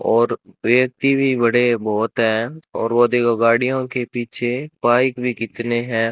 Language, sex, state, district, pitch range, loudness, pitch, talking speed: Hindi, male, Rajasthan, Bikaner, 115-125 Hz, -19 LUFS, 120 Hz, 155 wpm